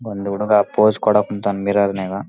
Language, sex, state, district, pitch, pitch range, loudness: Kannada, male, Karnataka, Raichur, 100 Hz, 100-105 Hz, -18 LUFS